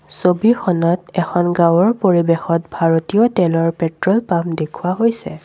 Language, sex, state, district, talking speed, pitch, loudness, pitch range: Assamese, female, Assam, Kamrup Metropolitan, 110 wpm, 175 Hz, -16 LUFS, 165-190 Hz